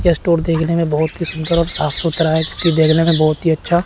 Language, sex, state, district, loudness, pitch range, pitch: Hindi, male, Chandigarh, Chandigarh, -15 LUFS, 160-170 Hz, 165 Hz